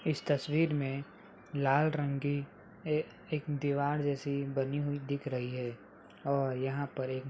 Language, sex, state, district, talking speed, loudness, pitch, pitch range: Hindi, male, Uttar Pradesh, Ghazipur, 155 wpm, -34 LUFS, 140 Hz, 135-150 Hz